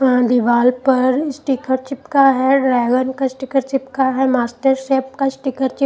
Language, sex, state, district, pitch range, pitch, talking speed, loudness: Hindi, female, Punjab, Pathankot, 255-270 Hz, 265 Hz, 165 wpm, -17 LUFS